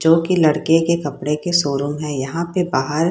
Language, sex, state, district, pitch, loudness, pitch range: Hindi, female, Bihar, Saharsa, 160 Hz, -18 LUFS, 145-170 Hz